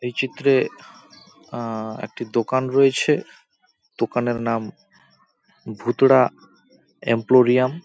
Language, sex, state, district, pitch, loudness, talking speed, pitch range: Bengali, male, West Bengal, Paschim Medinipur, 125 Hz, -20 LUFS, 75 wpm, 115-130 Hz